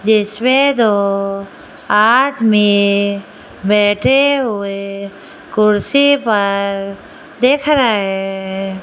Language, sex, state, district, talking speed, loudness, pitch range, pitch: Hindi, female, Rajasthan, Jaipur, 70 wpm, -14 LUFS, 200-240 Hz, 205 Hz